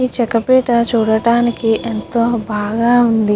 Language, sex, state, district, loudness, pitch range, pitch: Telugu, female, Andhra Pradesh, Guntur, -15 LUFS, 220-240 Hz, 235 Hz